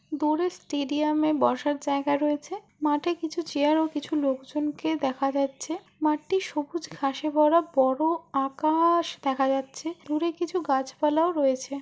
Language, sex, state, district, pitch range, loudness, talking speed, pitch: Bengali, female, West Bengal, Jhargram, 280-325 Hz, -26 LUFS, 130 wpm, 300 Hz